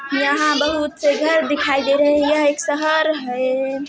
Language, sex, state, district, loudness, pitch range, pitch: Hindi, female, Chhattisgarh, Sarguja, -17 LUFS, 275-300 Hz, 290 Hz